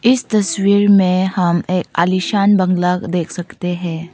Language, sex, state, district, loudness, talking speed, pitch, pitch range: Hindi, female, Arunachal Pradesh, Papum Pare, -16 LUFS, 145 wpm, 185 Hz, 175-200 Hz